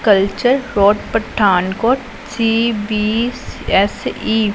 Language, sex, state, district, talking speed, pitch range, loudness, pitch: Punjabi, female, Punjab, Pathankot, 105 wpm, 205-245 Hz, -16 LUFS, 220 Hz